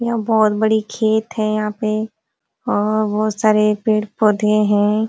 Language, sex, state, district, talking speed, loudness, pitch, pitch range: Hindi, female, Uttar Pradesh, Ghazipur, 140 wpm, -17 LUFS, 215 Hz, 210-220 Hz